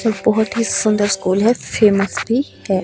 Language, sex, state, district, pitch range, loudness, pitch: Hindi, female, Himachal Pradesh, Shimla, 195-225 Hz, -17 LUFS, 215 Hz